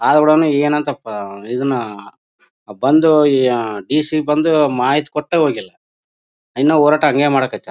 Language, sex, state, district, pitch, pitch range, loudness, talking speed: Kannada, male, Karnataka, Bellary, 145 Hz, 125-150 Hz, -15 LUFS, 130 wpm